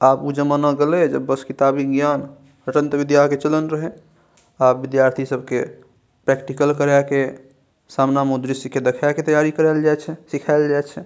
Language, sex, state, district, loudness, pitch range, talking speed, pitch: Maithili, male, Bihar, Saharsa, -19 LUFS, 135-150 Hz, 185 wpm, 140 Hz